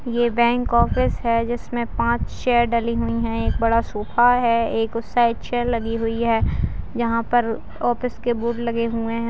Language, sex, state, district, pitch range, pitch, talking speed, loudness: Hindi, female, Bihar, Jamui, 230-240 Hz, 235 Hz, 195 wpm, -21 LUFS